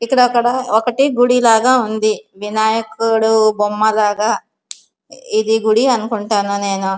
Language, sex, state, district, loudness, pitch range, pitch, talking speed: Telugu, female, Andhra Pradesh, Visakhapatnam, -15 LUFS, 215-245 Hz, 220 Hz, 110 wpm